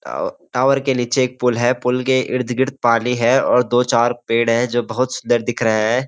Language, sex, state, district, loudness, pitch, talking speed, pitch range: Hindi, male, Uttarakhand, Uttarkashi, -17 LUFS, 125 Hz, 225 wpm, 120-130 Hz